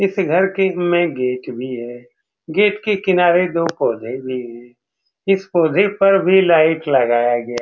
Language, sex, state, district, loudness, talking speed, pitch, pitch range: Hindi, male, Bihar, Saran, -16 LUFS, 175 wpm, 170 Hz, 125-195 Hz